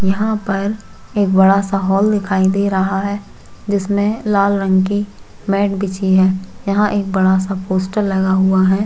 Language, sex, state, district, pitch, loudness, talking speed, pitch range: Hindi, female, Chhattisgarh, Jashpur, 195 Hz, -16 LUFS, 170 wpm, 190-205 Hz